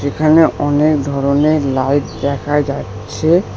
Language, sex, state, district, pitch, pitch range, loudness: Bengali, male, West Bengal, Alipurduar, 145 Hz, 140-155 Hz, -15 LUFS